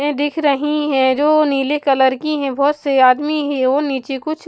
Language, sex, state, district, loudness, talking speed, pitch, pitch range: Hindi, female, Punjab, Kapurthala, -16 LUFS, 230 wpm, 285 Hz, 270-300 Hz